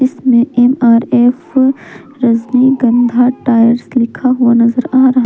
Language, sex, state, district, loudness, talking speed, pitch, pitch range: Hindi, female, Jharkhand, Palamu, -11 LUFS, 105 wpm, 250 Hz, 240-260 Hz